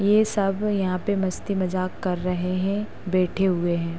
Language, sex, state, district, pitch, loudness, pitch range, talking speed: Hindi, female, Uttar Pradesh, Hamirpur, 185 Hz, -24 LUFS, 180-200 Hz, 180 wpm